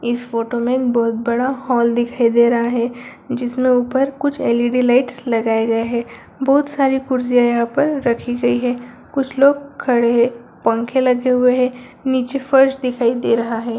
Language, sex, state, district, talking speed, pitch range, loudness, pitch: Hindi, female, Bihar, Lakhisarai, 180 wpm, 235-260 Hz, -17 LUFS, 245 Hz